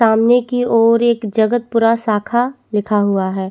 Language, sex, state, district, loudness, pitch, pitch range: Hindi, female, Chhattisgarh, Bastar, -15 LUFS, 230 Hz, 210-235 Hz